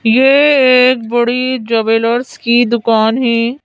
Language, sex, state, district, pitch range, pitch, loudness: Hindi, female, Madhya Pradesh, Bhopal, 230-255 Hz, 240 Hz, -11 LUFS